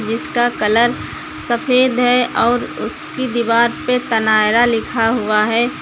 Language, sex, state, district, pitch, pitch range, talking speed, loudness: Hindi, female, Uttar Pradesh, Lucknow, 235 Hz, 225-250 Hz, 125 wpm, -16 LUFS